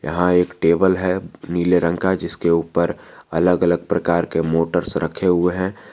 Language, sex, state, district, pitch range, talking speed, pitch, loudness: Hindi, male, Jharkhand, Garhwa, 85-90 Hz, 170 wpm, 85 Hz, -19 LUFS